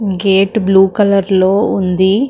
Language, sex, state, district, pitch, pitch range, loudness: Telugu, female, Telangana, Karimnagar, 195 Hz, 190-200 Hz, -12 LUFS